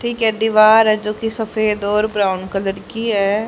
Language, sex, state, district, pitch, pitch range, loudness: Hindi, male, Haryana, Rohtak, 215 Hz, 205-225 Hz, -16 LUFS